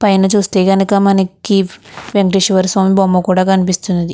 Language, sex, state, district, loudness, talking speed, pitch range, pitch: Telugu, female, Andhra Pradesh, Krishna, -13 LUFS, 130 wpm, 185-195 Hz, 190 Hz